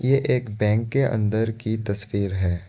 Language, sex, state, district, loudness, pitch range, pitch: Hindi, male, Assam, Kamrup Metropolitan, -19 LUFS, 100-115 Hz, 110 Hz